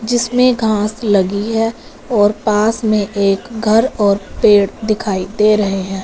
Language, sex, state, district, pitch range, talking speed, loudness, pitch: Hindi, female, Punjab, Fazilka, 200-225 Hz, 150 wpm, -15 LUFS, 215 Hz